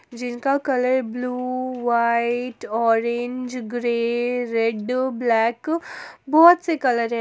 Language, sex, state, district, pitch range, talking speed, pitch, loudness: Hindi, female, Jharkhand, Garhwa, 235-255 Hz, 100 wpm, 245 Hz, -21 LUFS